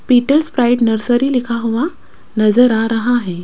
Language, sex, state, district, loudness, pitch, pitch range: Hindi, female, Rajasthan, Jaipur, -14 LUFS, 240 Hz, 225-250 Hz